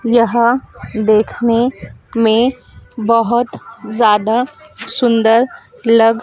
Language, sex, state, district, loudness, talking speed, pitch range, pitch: Hindi, female, Madhya Pradesh, Dhar, -14 LUFS, 65 wpm, 225-240 Hz, 230 Hz